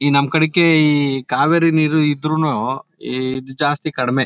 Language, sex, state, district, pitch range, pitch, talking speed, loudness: Kannada, male, Karnataka, Mysore, 135-155 Hz, 150 Hz, 140 wpm, -17 LUFS